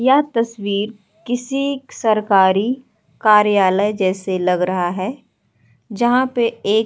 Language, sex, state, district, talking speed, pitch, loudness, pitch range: Hindi, female, Uttar Pradesh, Hamirpur, 115 wpm, 210 Hz, -18 LUFS, 190-240 Hz